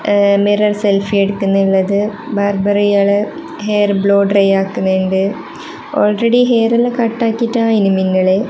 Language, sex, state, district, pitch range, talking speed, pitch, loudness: Malayalam, female, Kerala, Kasaragod, 195-215 Hz, 100 wpm, 200 Hz, -14 LUFS